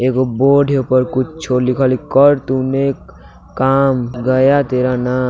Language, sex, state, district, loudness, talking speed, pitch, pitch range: Hindi, male, Bihar, Muzaffarpur, -14 LUFS, 145 wpm, 130 Hz, 125-135 Hz